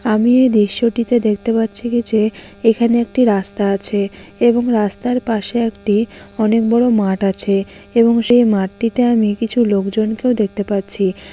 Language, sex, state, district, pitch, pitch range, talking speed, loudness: Bengali, female, West Bengal, Malda, 225 Hz, 205-235 Hz, 150 wpm, -15 LUFS